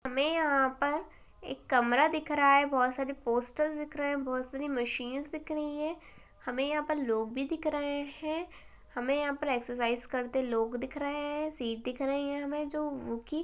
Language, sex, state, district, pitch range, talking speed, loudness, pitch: Hindi, female, Uttar Pradesh, Hamirpur, 250-300 Hz, 200 wpm, -32 LUFS, 280 Hz